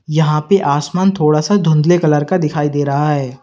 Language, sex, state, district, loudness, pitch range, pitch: Hindi, male, Uttar Pradesh, Lalitpur, -14 LUFS, 145-175 Hz, 150 Hz